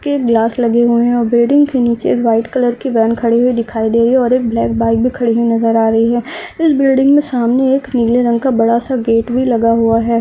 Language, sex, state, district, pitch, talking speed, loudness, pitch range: Hindi, female, Andhra Pradesh, Chittoor, 235 Hz, 260 wpm, -13 LUFS, 230-255 Hz